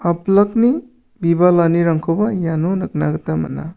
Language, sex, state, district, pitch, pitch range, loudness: Garo, male, Meghalaya, South Garo Hills, 170 Hz, 165-205 Hz, -17 LUFS